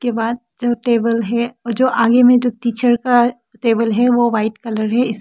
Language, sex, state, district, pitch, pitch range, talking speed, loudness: Hindi, female, Arunachal Pradesh, Papum Pare, 235 Hz, 230-245 Hz, 205 wpm, -16 LUFS